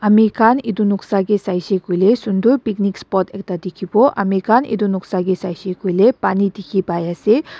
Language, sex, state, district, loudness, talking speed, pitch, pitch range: Nagamese, female, Nagaland, Dimapur, -17 LUFS, 180 wpm, 200 Hz, 190-215 Hz